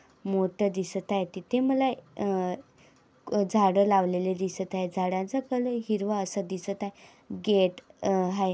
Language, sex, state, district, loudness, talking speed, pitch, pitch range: Marathi, female, Maharashtra, Dhule, -28 LUFS, 135 wpm, 195 Hz, 190-210 Hz